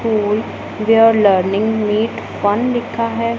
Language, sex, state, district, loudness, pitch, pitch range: Hindi, female, Punjab, Pathankot, -16 LUFS, 220 Hz, 210-230 Hz